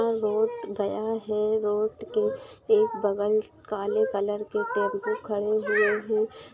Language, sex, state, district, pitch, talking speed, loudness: Hindi, female, Maharashtra, Dhule, 215 Hz, 140 wpm, -27 LUFS